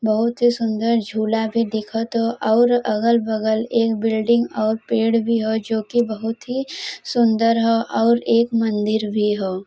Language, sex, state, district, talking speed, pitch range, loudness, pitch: Bhojpuri, female, Uttar Pradesh, Varanasi, 170 wpm, 220-235 Hz, -19 LUFS, 225 Hz